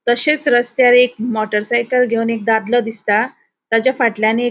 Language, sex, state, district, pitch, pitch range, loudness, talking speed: Konkani, female, Goa, North and South Goa, 240 Hz, 225-250 Hz, -15 LUFS, 175 wpm